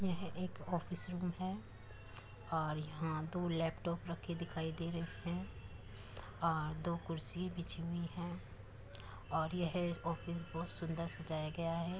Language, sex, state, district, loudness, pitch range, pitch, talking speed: Hindi, female, Uttar Pradesh, Muzaffarnagar, -41 LUFS, 110-170 Hz, 165 Hz, 140 wpm